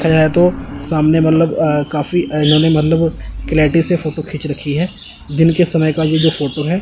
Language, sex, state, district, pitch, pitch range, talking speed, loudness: Hindi, male, Chandigarh, Chandigarh, 160 Hz, 150-165 Hz, 195 wpm, -14 LUFS